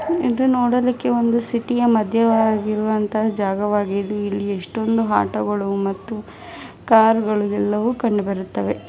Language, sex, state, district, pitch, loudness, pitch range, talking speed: Kannada, male, Karnataka, Mysore, 215 Hz, -19 LUFS, 205-235 Hz, 100 wpm